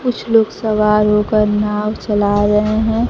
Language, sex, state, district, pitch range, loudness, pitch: Hindi, female, Bihar, Kaimur, 210-220 Hz, -15 LUFS, 210 Hz